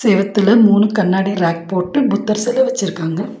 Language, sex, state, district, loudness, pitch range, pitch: Tamil, female, Tamil Nadu, Nilgiris, -15 LUFS, 190-220 Hz, 205 Hz